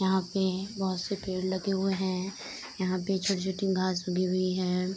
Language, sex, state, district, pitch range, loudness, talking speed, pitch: Hindi, female, Bihar, Saharsa, 185-195 Hz, -30 LUFS, 180 wpm, 190 Hz